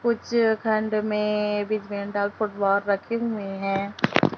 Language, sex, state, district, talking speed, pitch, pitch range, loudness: Hindi, female, Chhattisgarh, Raipur, 80 wpm, 210 Hz, 200-220 Hz, -25 LUFS